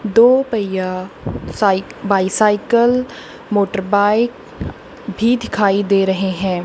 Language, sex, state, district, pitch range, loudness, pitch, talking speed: Hindi, female, Punjab, Kapurthala, 195-230 Hz, -16 LUFS, 205 Hz, 100 wpm